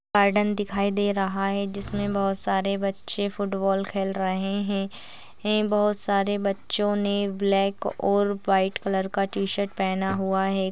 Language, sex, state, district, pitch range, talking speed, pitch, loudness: Hindi, female, Chhattisgarh, Balrampur, 195-205 Hz, 150 wpm, 200 Hz, -25 LUFS